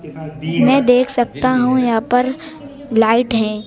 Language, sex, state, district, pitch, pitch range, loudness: Hindi, male, Madhya Pradesh, Bhopal, 245 Hz, 220-255 Hz, -15 LUFS